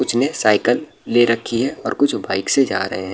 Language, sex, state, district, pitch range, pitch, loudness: Hindi, male, Bihar, Araria, 95-135 Hz, 120 Hz, -18 LUFS